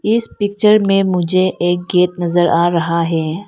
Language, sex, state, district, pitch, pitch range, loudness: Hindi, female, Arunachal Pradesh, Lower Dibang Valley, 180 Hz, 170-195 Hz, -14 LUFS